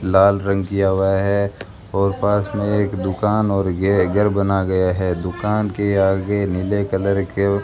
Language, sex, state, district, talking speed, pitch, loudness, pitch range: Hindi, male, Rajasthan, Bikaner, 180 wpm, 100 Hz, -19 LUFS, 95-100 Hz